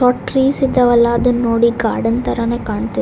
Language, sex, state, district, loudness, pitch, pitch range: Kannada, female, Karnataka, Raichur, -15 LUFS, 235 Hz, 230-250 Hz